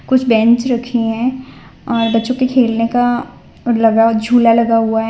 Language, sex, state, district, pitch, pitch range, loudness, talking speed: Hindi, female, Gujarat, Valsad, 235 Hz, 225-245 Hz, -14 LUFS, 165 wpm